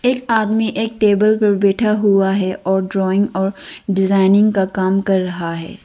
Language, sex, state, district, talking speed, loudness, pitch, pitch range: Hindi, female, Arunachal Pradesh, Lower Dibang Valley, 165 wpm, -16 LUFS, 195 Hz, 190-215 Hz